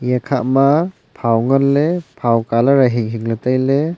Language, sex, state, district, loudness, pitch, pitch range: Wancho, male, Arunachal Pradesh, Longding, -16 LUFS, 130 Hz, 115-140 Hz